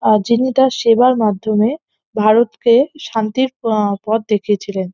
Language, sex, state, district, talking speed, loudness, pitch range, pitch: Bengali, female, West Bengal, North 24 Parganas, 110 wpm, -15 LUFS, 210-250 Hz, 225 Hz